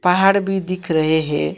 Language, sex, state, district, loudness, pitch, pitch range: Hindi, male, West Bengal, Alipurduar, -18 LUFS, 180 Hz, 155-190 Hz